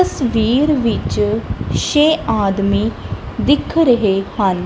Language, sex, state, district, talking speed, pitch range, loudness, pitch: Punjabi, female, Punjab, Kapurthala, 90 wpm, 200-295 Hz, -16 LUFS, 230 Hz